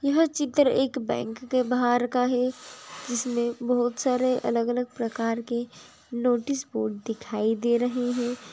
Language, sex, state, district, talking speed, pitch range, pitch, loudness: Hindi, female, Andhra Pradesh, Chittoor, 150 wpm, 235-255 Hz, 245 Hz, -26 LUFS